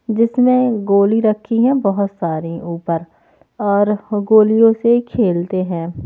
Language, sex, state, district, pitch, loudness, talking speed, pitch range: Hindi, female, Haryana, Jhajjar, 205 Hz, -16 LUFS, 120 wpm, 175-225 Hz